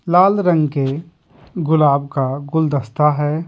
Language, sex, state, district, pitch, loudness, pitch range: Hindi, male, Bihar, Patna, 150 Hz, -17 LUFS, 140-165 Hz